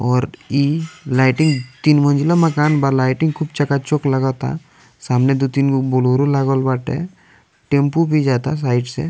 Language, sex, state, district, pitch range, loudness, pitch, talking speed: Bhojpuri, male, Bihar, East Champaran, 130-150 Hz, -17 LUFS, 140 Hz, 145 wpm